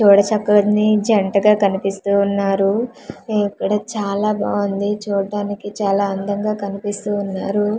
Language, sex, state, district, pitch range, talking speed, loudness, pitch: Telugu, female, Andhra Pradesh, Manyam, 200-210 Hz, 90 wpm, -18 LUFS, 205 Hz